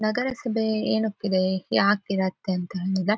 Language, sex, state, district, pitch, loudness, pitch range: Kannada, female, Karnataka, Shimoga, 200 Hz, -25 LUFS, 190-220 Hz